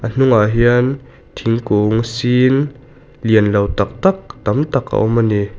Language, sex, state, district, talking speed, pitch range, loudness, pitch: Mizo, male, Mizoram, Aizawl, 150 wpm, 105-130 Hz, -15 LUFS, 120 Hz